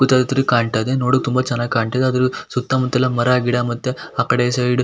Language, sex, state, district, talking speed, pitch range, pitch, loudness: Kannada, male, Karnataka, Shimoga, 160 wpm, 120-130 Hz, 125 Hz, -18 LUFS